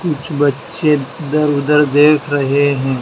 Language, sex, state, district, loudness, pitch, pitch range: Hindi, male, Madhya Pradesh, Dhar, -14 LUFS, 145 Hz, 140-150 Hz